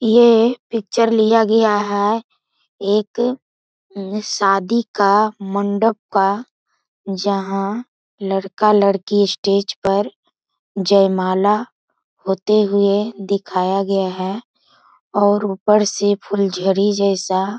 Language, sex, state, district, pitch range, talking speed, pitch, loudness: Hindi, female, Bihar, Bhagalpur, 195-215 Hz, 90 wpm, 200 Hz, -17 LUFS